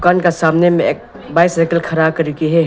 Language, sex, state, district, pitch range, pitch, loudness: Hindi, male, Arunachal Pradesh, Lower Dibang Valley, 160-170 Hz, 165 Hz, -14 LUFS